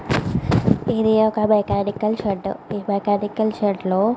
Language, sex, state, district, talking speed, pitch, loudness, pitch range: Telugu, female, Andhra Pradesh, Visakhapatnam, 130 wpm, 210 Hz, -20 LUFS, 200-220 Hz